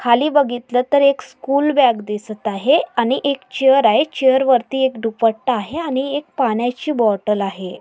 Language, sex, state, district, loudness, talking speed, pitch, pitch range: Marathi, female, Maharashtra, Pune, -17 LUFS, 170 wpm, 260 Hz, 225-280 Hz